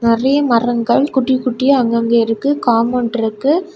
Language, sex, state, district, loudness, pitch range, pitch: Tamil, female, Tamil Nadu, Kanyakumari, -15 LUFS, 230-275 Hz, 245 Hz